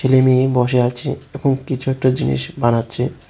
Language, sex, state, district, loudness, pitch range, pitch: Bengali, male, Tripura, West Tripura, -18 LUFS, 125-135 Hz, 130 Hz